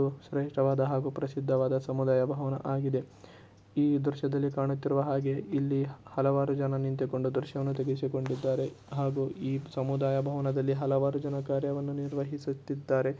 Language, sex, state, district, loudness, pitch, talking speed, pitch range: Kannada, male, Karnataka, Shimoga, -31 LUFS, 135 Hz, 115 wpm, 135-140 Hz